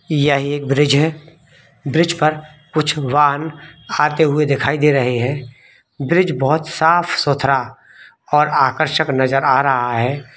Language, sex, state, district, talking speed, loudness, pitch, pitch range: Hindi, male, Bihar, East Champaran, 135 wpm, -16 LUFS, 145 Hz, 135-155 Hz